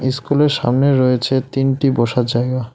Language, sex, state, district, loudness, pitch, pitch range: Bengali, male, West Bengal, Alipurduar, -16 LUFS, 130 Hz, 125-135 Hz